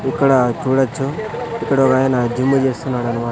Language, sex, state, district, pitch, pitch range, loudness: Telugu, male, Andhra Pradesh, Sri Satya Sai, 130 Hz, 125-135 Hz, -17 LUFS